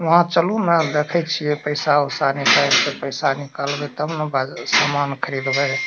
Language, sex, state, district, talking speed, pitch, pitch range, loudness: Maithili, male, Bihar, Darbhanga, 155 wpm, 150 Hz, 140-160 Hz, -19 LUFS